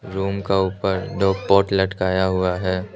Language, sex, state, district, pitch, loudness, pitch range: Hindi, male, Arunachal Pradesh, Lower Dibang Valley, 95 Hz, -20 LUFS, 95-100 Hz